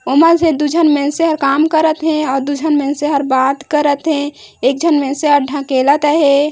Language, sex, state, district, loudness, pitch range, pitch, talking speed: Chhattisgarhi, female, Chhattisgarh, Raigarh, -14 LUFS, 280-315 Hz, 290 Hz, 210 wpm